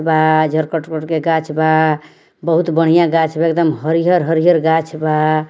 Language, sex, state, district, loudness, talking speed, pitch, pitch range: Bhojpuri, female, Bihar, Muzaffarpur, -15 LUFS, 155 wpm, 160 Hz, 155-165 Hz